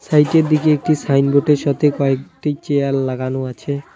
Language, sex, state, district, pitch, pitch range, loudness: Bengali, male, West Bengal, Alipurduar, 140 Hz, 135-150 Hz, -17 LUFS